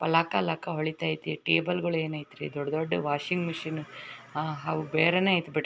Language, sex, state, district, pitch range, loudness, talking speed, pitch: Kannada, female, Karnataka, Bijapur, 155-170 Hz, -29 LUFS, 190 wpm, 160 Hz